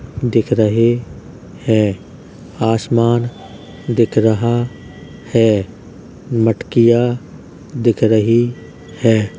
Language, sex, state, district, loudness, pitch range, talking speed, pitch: Hindi, male, Uttar Pradesh, Hamirpur, -16 LUFS, 110-120 Hz, 70 wpm, 115 Hz